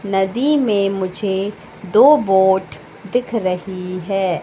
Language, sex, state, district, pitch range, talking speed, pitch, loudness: Hindi, female, Madhya Pradesh, Katni, 185-210 Hz, 110 wpm, 195 Hz, -17 LUFS